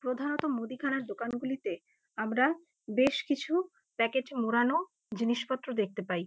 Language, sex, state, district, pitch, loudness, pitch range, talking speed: Bengali, female, West Bengal, North 24 Parganas, 260 Hz, -32 LUFS, 230-285 Hz, 105 wpm